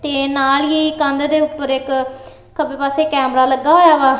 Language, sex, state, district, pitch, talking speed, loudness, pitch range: Punjabi, female, Punjab, Kapurthala, 280 Hz, 185 wpm, -15 LUFS, 270-305 Hz